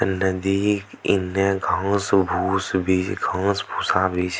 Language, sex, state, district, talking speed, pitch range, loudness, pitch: Angika, male, Bihar, Bhagalpur, 95 wpm, 95-100 Hz, -22 LUFS, 95 Hz